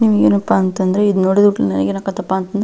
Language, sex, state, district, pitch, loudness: Kannada, female, Karnataka, Belgaum, 190 Hz, -15 LUFS